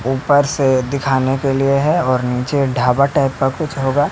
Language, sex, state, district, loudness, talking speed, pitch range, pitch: Hindi, male, Haryana, Rohtak, -16 LUFS, 175 wpm, 130-140 Hz, 135 Hz